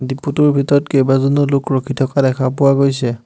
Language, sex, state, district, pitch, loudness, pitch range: Assamese, male, Assam, Hailakandi, 135 Hz, -15 LUFS, 135-140 Hz